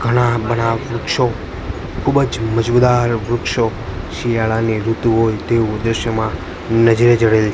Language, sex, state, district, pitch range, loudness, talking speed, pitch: Gujarati, male, Gujarat, Gandhinagar, 110-120 Hz, -17 LUFS, 110 wpm, 115 Hz